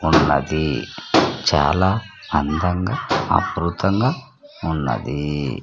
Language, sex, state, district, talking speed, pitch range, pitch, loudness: Telugu, male, Andhra Pradesh, Sri Satya Sai, 55 wpm, 75-95 Hz, 80 Hz, -20 LUFS